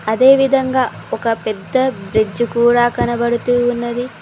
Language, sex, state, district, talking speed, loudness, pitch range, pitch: Telugu, female, Telangana, Mahabubabad, 100 wpm, -16 LUFS, 230-255 Hz, 240 Hz